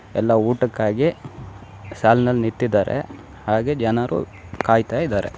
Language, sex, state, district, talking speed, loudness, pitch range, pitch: Kannada, male, Karnataka, Shimoga, 100 wpm, -20 LUFS, 100-125 Hz, 115 Hz